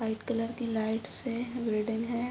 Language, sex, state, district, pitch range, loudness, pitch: Hindi, female, Uttar Pradesh, Ghazipur, 220-240 Hz, -32 LUFS, 230 Hz